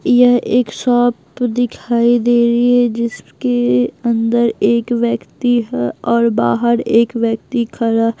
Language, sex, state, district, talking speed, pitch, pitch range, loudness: Hindi, female, Bihar, Patna, 130 wpm, 235 Hz, 230-240 Hz, -15 LUFS